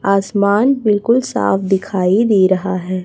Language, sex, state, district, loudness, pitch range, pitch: Hindi, female, Chhattisgarh, Raipur, -15 LUFS, 190-210 Hz, 195 Hz